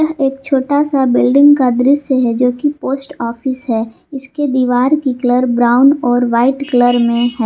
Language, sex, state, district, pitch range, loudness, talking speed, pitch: Hindi, female, Jharkhand, Palamu, 245-280 Hz, -13 LUFS, 175 wpm, 260 Hz